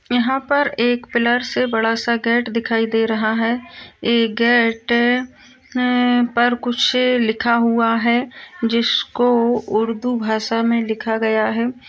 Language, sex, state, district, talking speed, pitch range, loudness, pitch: Hindi, female, Bihar, Purnia, 135 wpm, 230-245 Hz, -18 LUFS, 235 Hz